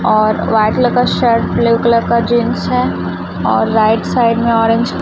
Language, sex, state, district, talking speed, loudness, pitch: Hindi, female, Chhattisgarh, Raipur, 190 wpm, -13 LUFS, 225 Hz